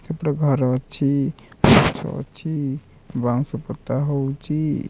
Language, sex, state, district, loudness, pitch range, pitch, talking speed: Odia, male, Odisha, Khordha, -21 LUFS, 130-150 Hz, 140 Hz, 85 wpm